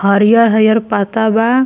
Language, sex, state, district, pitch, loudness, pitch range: Bhojpuri, female, Bihar, Muzaffarpur, 220 Hz, -12 LUFS, 210-230 Hz